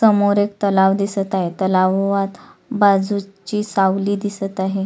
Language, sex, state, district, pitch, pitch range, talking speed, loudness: Marathi, female, Maharashtra, Solapur, 195 Hz, 190-205 Hz, 125 wpm, -18 LUFS